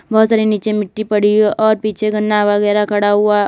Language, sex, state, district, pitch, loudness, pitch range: Hindi, female, Uttar Pradesh, Lalitpur, 210 Hz, -14 LUFS, 205-215 Hz